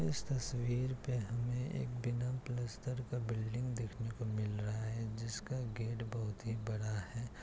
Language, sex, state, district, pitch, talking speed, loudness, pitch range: Hindi, male, Bihar, Kishanganj, 115 Hz, 160 wpm, -40 LUFS, 110-125 Hz